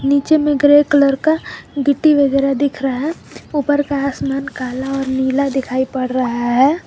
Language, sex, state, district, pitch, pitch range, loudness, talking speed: Hindi, female, Jharkhand, Garhwa, 275 Hz, 265-290 Hz, -16 LUFS, 165 wpm